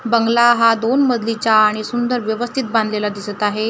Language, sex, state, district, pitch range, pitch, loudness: Marathi, female, Maharashtra, Gondia, 215-240 Hz, 230 Hz, -16 LUFS